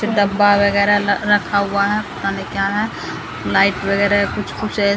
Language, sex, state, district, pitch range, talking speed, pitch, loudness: Hindi, female, Bihar, Patna, 200-205 Hz, 155 wpm, 200 Hz, -17 LUFS